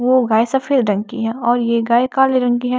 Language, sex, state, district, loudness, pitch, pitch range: Hindi, female, Maharashtra, Washim, -16 LUFS, 245 Hz, 230-255 Hz